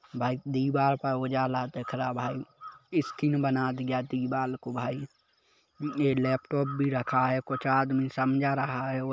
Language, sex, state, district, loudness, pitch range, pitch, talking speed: Hindi, male, Chhattisgarh, Kabirdham, -29 LUFS, 130-140 Hz, 130 Hz, 150 wpm